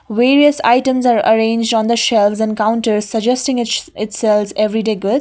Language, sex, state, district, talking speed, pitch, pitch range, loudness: English, female, Sikkim, Gangtok, 175 wpm, 225 Hz, 215-240 Hz, -14 LUFS